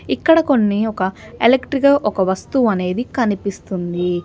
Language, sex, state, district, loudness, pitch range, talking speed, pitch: Telugu, female, Telangana, Hyderabad, -17 LUFS, 190-260 Hz, 125 wpm, 210 Hz